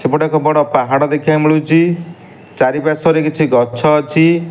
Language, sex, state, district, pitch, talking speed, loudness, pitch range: Odia, male, Odisha, Nuapada, 155 Hz, 175 wpm, -13 LUFS, 150-160 Hz